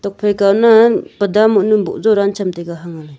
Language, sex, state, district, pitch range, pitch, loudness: Wancho, female, Arunachal Pradesh, Longding, 185-215 Hz, 200 Hz, -13 LUFS